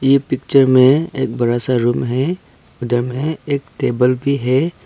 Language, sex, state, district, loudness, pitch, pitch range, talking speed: Hindi, male, Arunachal Pradesh, Papum Pare, -16 LUFS, 130 Hz, 125-140 Hz, 175 wpm